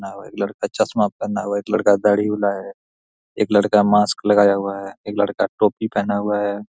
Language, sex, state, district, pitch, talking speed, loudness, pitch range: Hindi, male, Jharkhand, Jamtara, 100 Hz, 205 wpm, -19 LUFS, 100-105 Hz